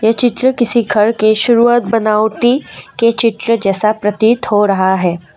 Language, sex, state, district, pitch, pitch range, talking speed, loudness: Hindi, female, Assam, Kamrup Metropolitan, 220 Hz, 210-235 Hz, 155 wpm, -13 LUFS